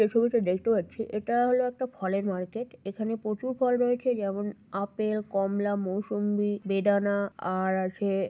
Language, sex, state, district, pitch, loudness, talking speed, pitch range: Bengali, female, West Bengal, North 24 Parganas, 205 Hz, -28 LUFS, 150 wpm, 195-230 Hz